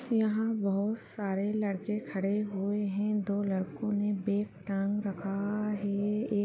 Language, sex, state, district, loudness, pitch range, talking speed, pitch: Hindi, female, Bihar, Bhagalpur, -32 LUFS, 200-210 Hz, 150 wpm, 205 Hz